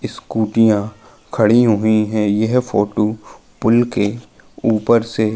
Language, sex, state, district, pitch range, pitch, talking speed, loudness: Hindi, male, Uttar Pradesh, Jalaun, 105-115 Hz, 110 Hz, 125 wpm, -16 LUFS